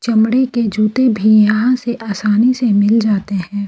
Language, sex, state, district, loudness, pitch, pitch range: Hindi, female, Delhi, New Delhi, -14 LUFS, 220 Hz, 210-240 Hz